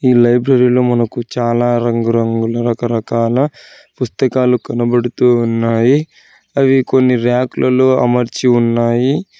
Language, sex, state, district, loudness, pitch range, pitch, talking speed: Telugu, male, Telangana, Hyderabad, -14 LUFS, 120-130 Hz, 120 Hz, 90 wpm